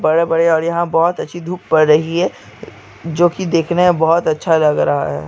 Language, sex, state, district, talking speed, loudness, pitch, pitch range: Hindi, male, Andhra Pradesh, Chittoor, 215 wpm, -15 LUFS, 165 Hz, 160-175 Hz